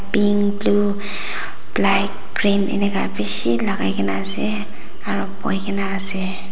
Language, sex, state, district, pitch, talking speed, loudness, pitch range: Nagamese, female, Nagaland, Dimapur, 200 Hz, 110 wpm, -19 LUFS, 190-205 Hz